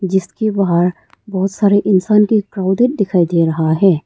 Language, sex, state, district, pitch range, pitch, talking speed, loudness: Hindi, female, Arunachal Pradesh, Papum Pare, 180-205 Hz, 190 Hz, 160 wpm, -15 LUFS